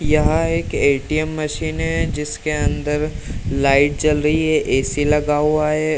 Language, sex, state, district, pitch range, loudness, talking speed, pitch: Hindi, male, Bihar, Lakhisarai, 140-155 Hz, -19 LUFS, 150 wpm, 150 Hz